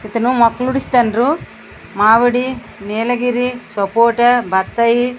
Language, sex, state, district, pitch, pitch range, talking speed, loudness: Telugu, female, Andhra Pradesh, Srikakulam, 240 Hz, 225-245 Hz, 95 wpm, -15 LUFS